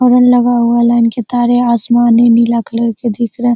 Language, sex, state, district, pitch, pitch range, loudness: Hindi, female, Bihar, Araria, 235 Hz, 235-245 Hz, -11 LUFS